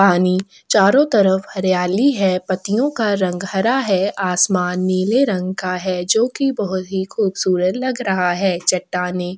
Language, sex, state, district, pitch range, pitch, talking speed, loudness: Hindi, female, Chhattisgarh, Sukma, 185-210 Hz, 190 Hz, 155 wpm, -18 LUFS